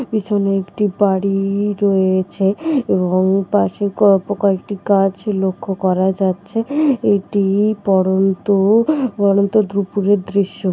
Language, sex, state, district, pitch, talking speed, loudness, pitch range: Bengali, female, West Bengal, Dakshin Dinajpur, 200 Hz, 100 wpm, -16 LUFS, 190-205 Hz